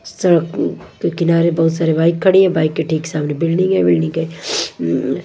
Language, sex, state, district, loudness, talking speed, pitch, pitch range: Hindi, female, Odisha, Nuapada, -16 LUFS, 195 wpm, 165 Hz, 160-170 Hz